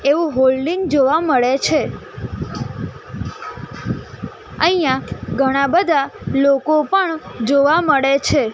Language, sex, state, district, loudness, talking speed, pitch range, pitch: Gujarati, female, Gujarat, Gandhinagar, -17 LUFS, 90 wpm, 270-325 Hz, 280 Hz